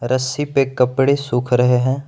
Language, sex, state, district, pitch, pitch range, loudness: Hindi, male, Jharkhand, Palamu, 130 Hz, 125-135 Hz, -17 LUFS